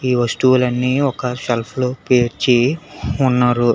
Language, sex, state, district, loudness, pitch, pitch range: Telugu, male, Telangana, Hyderabad, -17 LUFS, 125 Hz, 120-130 Hz